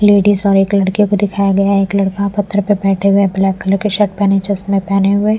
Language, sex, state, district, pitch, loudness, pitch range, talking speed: Hindi, female, Bihar, Patna, 200 Hz, -13 LUFS, 195-205 Hz, 245 wpm